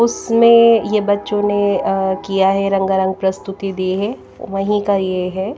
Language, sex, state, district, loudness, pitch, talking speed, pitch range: Hindi, female, Himachal Pradesh, Shimla, -16 LUFS, 195 Hz, 150 wpm, 190-205 Hz